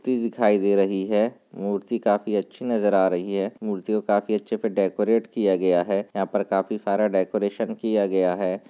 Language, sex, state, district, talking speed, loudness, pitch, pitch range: Hindi, male, Chhattisgarh, Raigarh, 200 wpm, -23 LUFS, 100 Hz, 95-110 Hz